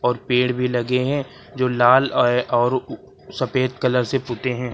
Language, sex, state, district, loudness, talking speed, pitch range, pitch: Hindi, male, Uttar Pradesh, Lucknow, -20 LUFS, 165 wpm, 125-130 Hz, 125 Hz